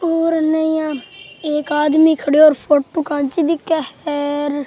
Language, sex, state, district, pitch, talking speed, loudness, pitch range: Rajasthani, male, Rajasthan, Churu, 305 Hz, 140 wpm, -16 LUFS, 290-320 Hz